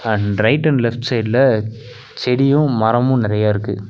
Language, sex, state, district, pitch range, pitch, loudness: Tamil, male, Tamil Nadu, Nilgiris, 110-130 Hz, 120 Hz, -16 LUFS